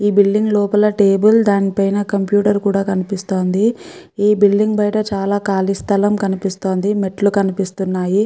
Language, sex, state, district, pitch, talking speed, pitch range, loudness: Telugu, female, Andhra Pradesh, Guntur, 200 Hz, 130 wpm, 195-205 Hz, -16 LUFS